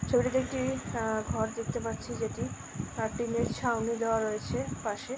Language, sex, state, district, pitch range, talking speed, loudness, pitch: Bengali, female, West Bengal, Dakshin Dinajpur, 225-255 Hz, 175 wpm, -32 LUFS, 235 Hz